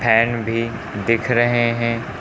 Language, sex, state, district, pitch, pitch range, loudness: Hindi, male, Uttar Pradesh, Lucknow, 115 Hz, 115-120 Hz, -19 LUFS